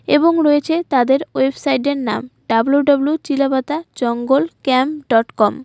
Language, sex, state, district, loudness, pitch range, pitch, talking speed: Bengali, female, West Bengal, Alipurduar, -17 LUFS, 255-295 Hz, 275 Hz, 140 wpm